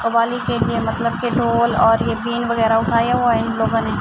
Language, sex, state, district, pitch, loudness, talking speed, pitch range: Urdu, female, Andhra Pradesh, Anantapur, 230 Hz, -18 LUFS, 255 wpm, 225-240 Hz